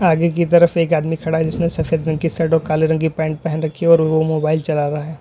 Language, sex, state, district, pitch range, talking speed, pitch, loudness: Hindi, male, Uttar Pradesh, Lalitpur, 155-165 Hz, 300 wpm, 160 Hz, -17 LUFS